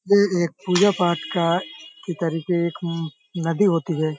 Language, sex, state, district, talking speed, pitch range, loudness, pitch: Hindi, male, Uttar Pradesh, Hamirpur, 145 wpm, 165-195 Hz, -22 LUFS, 175 Hz